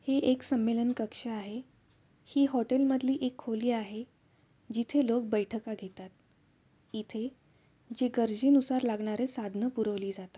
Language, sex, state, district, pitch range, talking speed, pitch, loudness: Marathi, female, Maharashtra, Pune, 220-255 Hz, 125 wpm, 235 Hz, -31 LUFS